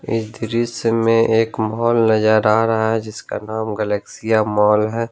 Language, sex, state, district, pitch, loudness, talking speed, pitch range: Hindi, male, Jharkhand, Ranchi, 110 Hz, -18 LUFS, 165 wpm, 110-115 Hz